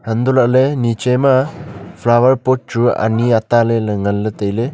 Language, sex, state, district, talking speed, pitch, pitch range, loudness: Wancho, male, Arunachal Pradesh, Longding, 165 wpm, 120 Hz, 110-130 Hz, -15 LUFS